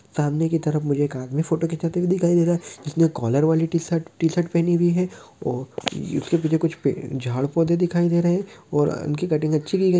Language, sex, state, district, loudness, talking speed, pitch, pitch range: Hindi, male, Uttar Pradesh, Deoria, -22 LUFS, 220 wpm, 165 Hz, 150-175 Hz